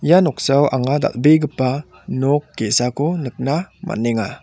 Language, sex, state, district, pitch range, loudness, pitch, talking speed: Garo, male, Meghalaya, West Garo Hills, 125-150 Hz, -18 LUFS, 140 Hz, 110 wpm